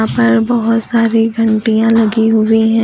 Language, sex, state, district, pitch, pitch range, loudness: Hindi, female, Uttar Pradesh, Lucknow, 225 Hz, 220-225 Hz, -12 LUFS